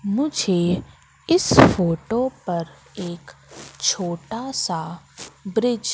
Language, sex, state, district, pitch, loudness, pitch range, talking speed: Hindi, female, Madhya Pradesh, Katni, 190 Hz, -21 LUFS, 170-240 Hz, 90 wpm